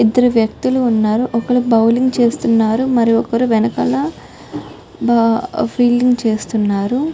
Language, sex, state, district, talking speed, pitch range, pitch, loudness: Telugu, female, Telangana, Karimnagar, 85 wpm, 225-250 Hz, 235 Hz, -15 LUFS